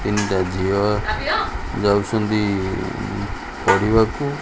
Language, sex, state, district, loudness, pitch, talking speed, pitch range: Odia, male, Odisha, Khordha, -20 LUFS, 100 Hz, 70 wpm, 95-110 Hz